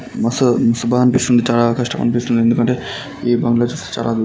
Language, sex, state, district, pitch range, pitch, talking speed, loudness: Telugu, male, Telangana, Karimnagar, 115-120 Hz, 120 Hz, 140 wpm, -16 LUFS